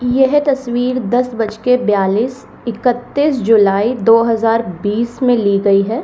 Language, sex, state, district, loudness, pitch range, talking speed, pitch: Hindi, female, Uttar Pradesh, Lalitpur, -14 LUFS, 215-250 Hz, 140 wpm, 235 Hz